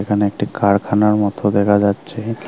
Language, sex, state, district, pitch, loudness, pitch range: Bengali, male, Tripura, Unakoti, 100 Hz, -17 LUFS, 100-105 Hz